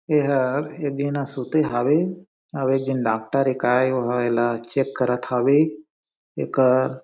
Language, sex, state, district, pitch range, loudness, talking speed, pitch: Chhattisgarhi, male, Chhattisgarh, Sarguja, 125-145 Hz, -22 LUFS, 155 wpm, 135 Hz